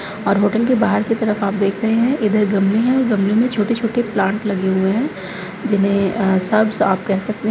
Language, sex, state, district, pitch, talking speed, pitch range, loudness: Hindi, female, Uttar Pradesh, Muzaffarnagar, 210 Hz, 230 wpm, 195-225 Hz, -17 LUFS